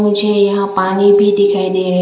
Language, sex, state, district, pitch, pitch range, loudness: Hindi, female, Arunachal Pradesh, Lower Dibang Valley, 200 Hz, 190-205 Hz, -12 LUFS